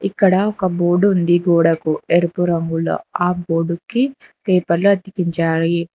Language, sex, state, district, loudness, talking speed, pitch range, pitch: Telugu, female, Telangana, Hyderabad, -17 LUFS, 120 wpm, 170-195 Hz, 175 Hz